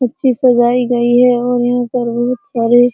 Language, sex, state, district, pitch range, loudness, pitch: Hindi, female, Bihar, Araria, 240-250 Hz, -13 LUFS, 245 Hz